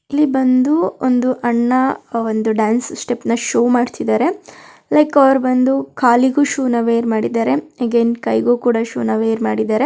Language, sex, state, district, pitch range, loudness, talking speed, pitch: Kannada, female, Karnataka, Belgaum, 230-265 Hz, -16 LUFS, 140 wpm, 245 Hz